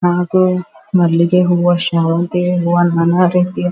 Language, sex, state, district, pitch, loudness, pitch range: Kannada, female, Karnataka, Dharwad, 175 Hz, -14 LUFS, 170-180 Hz